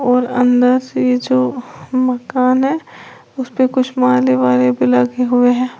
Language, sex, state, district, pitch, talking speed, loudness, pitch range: Hindi, female, Uttar Pradesh, Lalitpur, 250 Hz, 145 wpm, -15 LUFS, 245-255 Hz